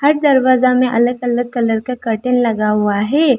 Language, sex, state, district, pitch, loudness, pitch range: Hindi, female, Arunachal Pradesh, Lower Dibang Valley, 245 Hz, -15 LUFS, 225-255 Hz